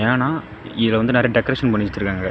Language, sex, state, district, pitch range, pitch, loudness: Tamil, male, Tamil Nadu, Namakkal, 105-125 Hz, 115 Hz, -19 LUFS